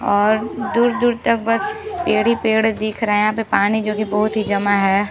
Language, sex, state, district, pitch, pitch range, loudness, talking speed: Hindi, female, Chhattisgarh, Rajnandgaon, 215 Hz, 210-235 Hz, -18 LUFS, 225 wpm